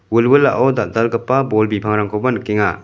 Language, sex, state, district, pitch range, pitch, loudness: Garo, male, Meghalaya, South Garo Hills, 105-130 Hz, 115 Hz, -16 LUFS